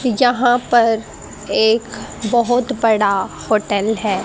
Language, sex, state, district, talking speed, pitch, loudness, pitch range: Hindi, female, Haryana, Charkhi Dadri, 100 wpm, 225 Hz, -16 LUFS, 215-245 Hz